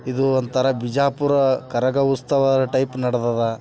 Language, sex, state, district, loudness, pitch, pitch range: Kannada, male, Karnataka, Bijapur, -20 LUFS, 130 Hz, 125-135 Hz